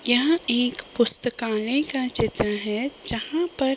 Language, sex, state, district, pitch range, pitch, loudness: Hindi, female, Uttar Pradesh, Deoria, 230-280 Hz, 245 Hz, -22 LUFS